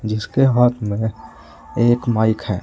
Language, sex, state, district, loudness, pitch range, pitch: Hindi, male, Uttar Pradesh, Saharanpur, -18 LUFS, 105-120 Hz, 110 Hz